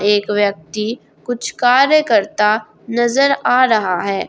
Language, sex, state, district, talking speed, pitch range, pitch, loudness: Hindi, female, Jharkhand, Garhwa, 125 wpm, 205-255 Hz, 225 Hz, -15 LUFS